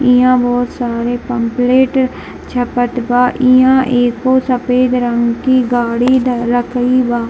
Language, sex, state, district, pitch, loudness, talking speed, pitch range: Hindi, female, Bihar, Darbhanga, 245 Hz, -13 LUFS, 130 wpm, 245-255 Hz